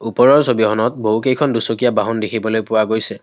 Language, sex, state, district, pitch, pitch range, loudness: Assamese, male, Assam, Kamrup Metropolitan, 115 Hz, 110-120 Hz, -16 LUFS